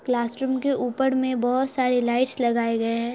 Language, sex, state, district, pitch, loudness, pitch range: Hindi, female, Bihar, Saharsa, 250 Hz, -23 LUFS, 240-260 Hz